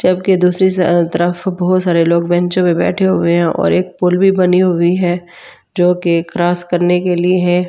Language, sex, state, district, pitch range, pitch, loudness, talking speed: Hindi, female, Delhi, New Delhi, 175-185 Hz, 180 Hz, -13 LUFS, 210 wpm